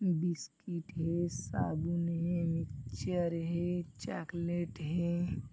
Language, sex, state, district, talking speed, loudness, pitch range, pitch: Chhattisgarhi, male, Chhattisgarh, Bilaspur, 85 wpm, -36 LUFS, 165-175 Hz, 170 Hz